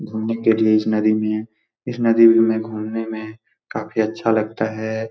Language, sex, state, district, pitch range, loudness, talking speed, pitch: Hindi, male, Bihar, Supaul, 110-115 Hz, -19 LUFS, 175 wpm, 110 Hz